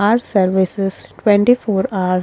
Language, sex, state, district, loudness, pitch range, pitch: Hindi, female, Chhattisgarh, Korba, -16 LUFS, 190-215 Hz, 195 Hz